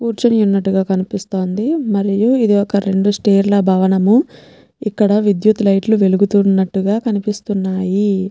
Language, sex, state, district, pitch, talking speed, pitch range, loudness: Telugu, female, Telangana, Nalgonda, 200 Hz, 115 wpm, 195-210 Hz, -15 LUFS